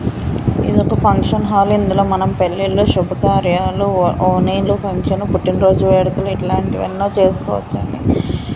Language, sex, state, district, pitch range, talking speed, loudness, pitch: Telugu, female, Andhra Pradesh, Guntur, 190-200 Hz, 105 wpm, -15 LUFS, 195 Hz